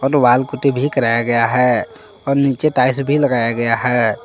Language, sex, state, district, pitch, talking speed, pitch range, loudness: Hindi, male, Jharkhand, Palamu, 130 Hz, 185 wpm, 120-140 Hz, -16 LUFS